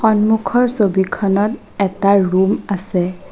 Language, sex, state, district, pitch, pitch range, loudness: Assamese, female, Assam, Sonitpur, 200 Hz, 190-215 Hz, -16 LUFS